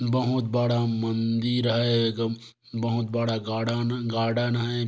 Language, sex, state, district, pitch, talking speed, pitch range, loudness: Hindi, male, Chhattisgarh, Korba, 115 Hz, 110 wpm, 115-120 Hz, -26 LUFS